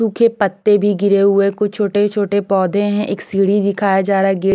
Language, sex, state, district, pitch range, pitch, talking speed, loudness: Hindi, female, Chandigarh, Chandigarh, 195-205 Hz, 200 Hz, 235 wpm, -15 LUFS